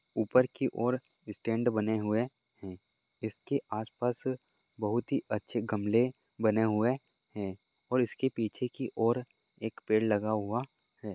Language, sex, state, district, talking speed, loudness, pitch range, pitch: Hindi, male, Goa, North and South Goa, 140 wpm, -32 LUFS, 105-125 Hz, 115 Hz